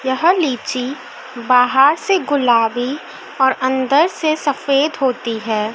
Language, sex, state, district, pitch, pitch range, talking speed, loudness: Hindi, female, Madhya Pradesh, Dhar, 265 Hz, 250-295 Hz, 115 wpm, -16 LUFS